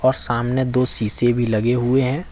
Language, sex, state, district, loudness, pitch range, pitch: Hindi, male, Jharkhand, Ranchi, -17 LUFS, 120-130 Hz, 125 Hz